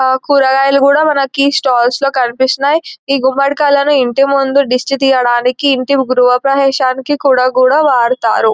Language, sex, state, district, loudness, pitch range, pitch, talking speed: Telugu, female, Telangana, Nalgonda, -11 LUFS, 255-280 Hz, 270 Hz, 125 wpm